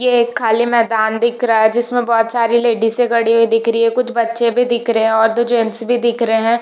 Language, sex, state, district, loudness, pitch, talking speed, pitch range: Hindi, female, Jharkhand, Jamtara, -15 LUFS, 235 Hz, 265 wpm, 225-240 Hz